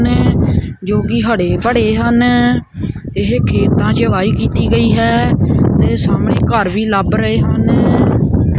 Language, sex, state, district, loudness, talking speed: Punjabi, male, Punjab, Kapurthala, -13 LUFS, 140 wpm